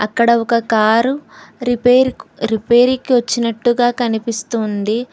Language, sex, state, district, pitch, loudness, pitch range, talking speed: Telugu, female, Telangana, Hyderabad, 235 Hz, -15 LUFS, 225-245 Hz, 80 wpm